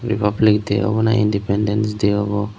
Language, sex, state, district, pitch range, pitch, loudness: Chakma, male, Tripura, Unakoti, 105-110 Hz, 105 Hz, -18 LUFS